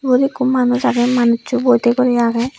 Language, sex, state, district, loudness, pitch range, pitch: Chakma, female, Tripura, Unakoti, -15 LUFS, 240-255 Hz, 250 Hz